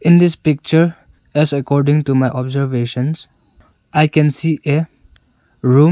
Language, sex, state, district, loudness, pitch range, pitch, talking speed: English, male, Arunachal Pradesh, Longding, -16 LUFS, 125-155 Hz, 140 Hz, 130 wpm